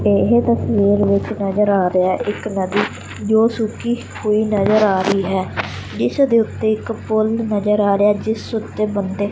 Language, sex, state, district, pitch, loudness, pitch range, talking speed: Punjabi, male, Punjab, Fazilka, 205 Hz, -18 LUFS, 195-215 Hz, 165 wpm